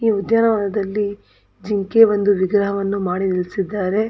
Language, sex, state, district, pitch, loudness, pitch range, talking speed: Kannada, female, Karnataka, Dakshina Kannada, 200 Hz, -18 LUFS, 195-210 Hz, 105 wpm